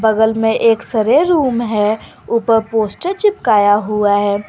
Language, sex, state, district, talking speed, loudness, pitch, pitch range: Hindi, female, Jharkhand, Garhwa, 135 wpm, -14 LUFS, 220 Hz, 210-235 Hz